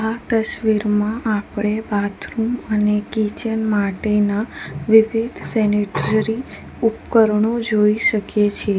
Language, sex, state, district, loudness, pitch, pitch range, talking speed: Gujarati, female, Gujarat, Valsad, -19 LUFS, 215 Hz, 210-225 Hz, 90 wpm